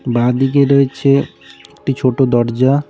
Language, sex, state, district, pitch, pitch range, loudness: Bengali, male, West Bengal, Cooch Behar, 135 Hz, 125-140 Hz, -14 LUFS